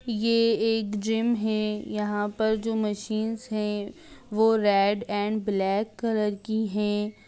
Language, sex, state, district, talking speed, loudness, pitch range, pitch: Hindi, female, Bihar, Darbhanga, 130 wpm, -26 LUFS, 210-225 Hz, 215 Hz